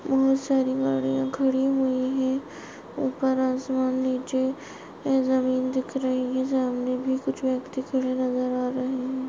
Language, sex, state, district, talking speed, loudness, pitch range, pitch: Hindi, female, Maharashtra, Solapur, 150 wpm, -25 LUFS, 255-265 Hz, 260 Hz